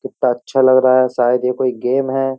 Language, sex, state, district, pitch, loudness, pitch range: Hindi, male, Uttar Pradesh, Jyotiba Phule Nagar, 130 Hz, -15 LUFS, 125-130 Hz